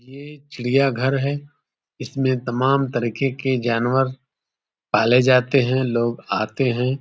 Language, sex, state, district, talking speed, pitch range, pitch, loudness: Hindi, male, Uttar Pradesh, Deoria, 120 wpm, 125-135 Hz, 130 Hz, -20 LUFS